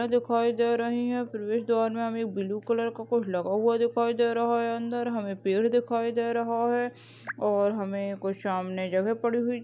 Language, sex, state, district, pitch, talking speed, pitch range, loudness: Hindi, female, Chhattisgarh, Balrampur, 230 Hz, 210 wpm, 205-235 Hz, -28 LUFS